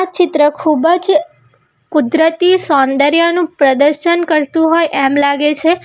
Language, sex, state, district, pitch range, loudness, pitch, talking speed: Gujarati, female, Gujarat, Valsad, 295-340 Hz, -12 LUFS, 320 Hz, 115 wpm